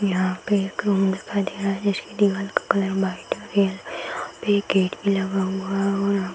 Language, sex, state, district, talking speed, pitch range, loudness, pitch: Hindi, female, Bihar, Saran, 215 wpm, 190-200 Hz, -23 LUFS, 195 Hz